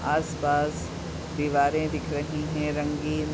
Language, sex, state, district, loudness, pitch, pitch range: Hindi, female, Uttar Pradesh, Deoria, -27 LUFS, 150 Hz, 145-155 Hz